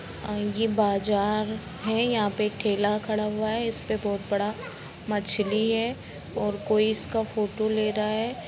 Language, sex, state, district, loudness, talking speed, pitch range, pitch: Hindi, female, Jharkhand, Jamtara, -26 LUFS, 150 wpm, 205-220 Hz, 215 Hz